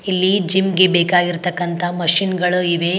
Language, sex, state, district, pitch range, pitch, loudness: Kannada, female, Karnataka, Bidar, 175-185 Hz, 180 Hz, -16 LUFS